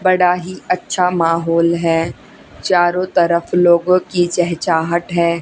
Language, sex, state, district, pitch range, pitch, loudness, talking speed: Hindi, female, Haryana, Jhajjar, 170-180 Hz, 175 Hz, -15 LUFS, 120 wpm